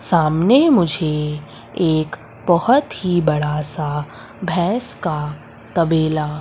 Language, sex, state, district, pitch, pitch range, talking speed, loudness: Hindi, female, Madhya Pradesh, Umaria, 165 Hz, 150-180 Hz, 95 wpm, -18 LUFS